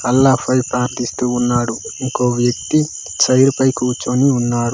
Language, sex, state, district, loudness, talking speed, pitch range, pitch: Telugu, male, Andhra Pradesh, Manyam, -16 LUFS, 125 wpm, 120-130 Hz, 125 Hz